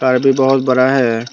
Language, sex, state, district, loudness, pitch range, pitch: Hindi, male, Tripura, Dhalai, -13 LUFS, 125-135 Hz, 130 Hz